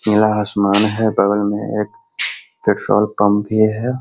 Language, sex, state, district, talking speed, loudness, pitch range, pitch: Hindi, male, Bihar, Sitamarhi, 150 wpm, -17 LUFS, 105-110 Hz, 105 Hz